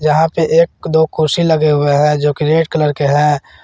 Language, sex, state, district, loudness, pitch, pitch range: Hindi, male, Jharkhand, Garhwa, -13 LUFS, 155 Hz, 150-160 Hz